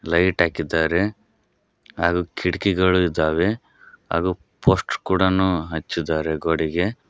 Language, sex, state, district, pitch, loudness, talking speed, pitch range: Kannada, male, Karnataka, Koppal, 85 Hz, -21 LUFS, 85 wpm, 80-95 Hz